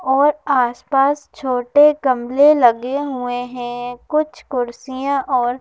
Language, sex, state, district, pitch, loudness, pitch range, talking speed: Hindi, female, Madhya Pradesh, Bhopal, 260 Hz, -18 LUFS, 245-285 Hz, 115 wpm